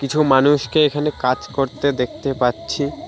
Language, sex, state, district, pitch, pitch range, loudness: Bengali, male, West Bengal, Alipurduar, 140 Hz, 130-145 Hz, -18 LUFS